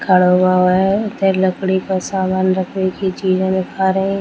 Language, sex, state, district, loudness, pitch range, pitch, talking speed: Hindi, female, Bihar, Darbhanga, -16 LUFS, 185-190 Hz, 190 Hz, 200 wpm